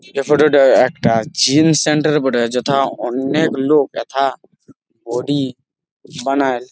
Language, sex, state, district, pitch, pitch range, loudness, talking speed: Bengali, male, West Bengal, Jalpaiguri, 135 Hz, 125-150 Hz, -15 LUFS, 125 wpm